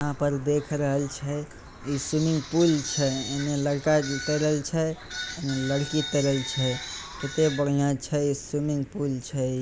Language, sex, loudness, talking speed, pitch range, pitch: Maithili, male, -26 LUFS, 160 wpm, 140-150 Hz, 145 Hz